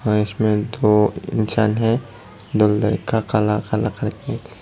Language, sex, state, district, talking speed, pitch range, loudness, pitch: Hindi, male, Tripura, Dhalai, 130 wpm, 105-115 Hz, -20 LUFS, 110 Hz